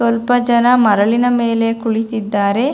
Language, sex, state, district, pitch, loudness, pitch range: Kannada, female, Karnataka, Bangalore, 230 Hz, -14 LUFS, 220-240 Hz